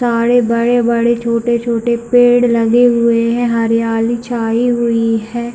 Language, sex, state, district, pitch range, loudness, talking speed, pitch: Hindi, female, Chhattisgarh, Bilaspur, 230-240 Hz, -13 LUFS, 120 wpm, 235 Hz